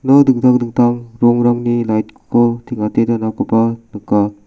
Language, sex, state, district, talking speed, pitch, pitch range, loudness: Garo, male, Meghalaya, South Garo Hills, 120 wpm, 120 Hz, 110-120 Hz, -15 LUFS